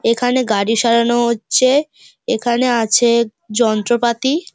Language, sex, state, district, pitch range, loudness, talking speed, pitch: Bengali, female, West Bengal, Dakshin Dinajpur, 230-245 Hz, -15 LUFS, 90 wpm, 235 Hz